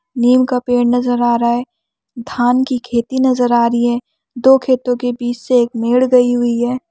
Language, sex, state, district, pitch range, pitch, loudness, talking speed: Hindi, male, Bihar, Bhagalpur, 240-255 Hz, 245 Hz, -15 LUFS, 210 wpm